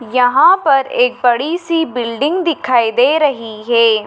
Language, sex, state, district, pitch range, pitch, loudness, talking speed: Hindi, female, Madhya Pradesh, Dhar, 235-310 Hz, 250 Hz, -13 LUFS, 145 wpm